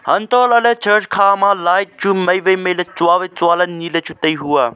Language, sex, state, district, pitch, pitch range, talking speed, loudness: Wancho, male, Arunachal Pradesh, Longding, 185 Hz, 170-200 Hz, 225 wpm, -14 LUFS